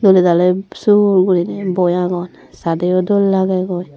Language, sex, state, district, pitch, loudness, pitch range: Chakma, female, Tripura, Dhalai, 185 Hz, -15 LUFS, 180-195 Hz